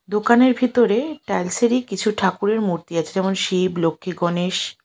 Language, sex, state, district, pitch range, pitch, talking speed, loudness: Bengali, female, West Bengal, Alipurduar, 180-235 Hz, 195 Hz, 135 wpm, -20 LUFS